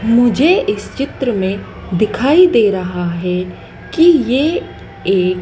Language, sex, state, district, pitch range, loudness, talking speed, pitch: Hindi, female, Madhya Pradesh, Dhar, 185-285 Hz, -14 LUFS, 120 wpm, 230 Hz